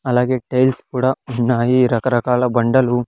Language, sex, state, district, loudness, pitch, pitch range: Telugu, male, Andhra Pradesh, Sri Satya Sai, -17 LUFS, 125 Hz, 120-130 Hz